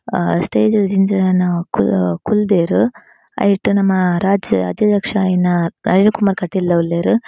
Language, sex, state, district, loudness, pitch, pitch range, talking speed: Tulu, female, Karnataka, Dakshina Kannada, -16 LUFS, 190 Hz, 175-205 Hz, 130 wpm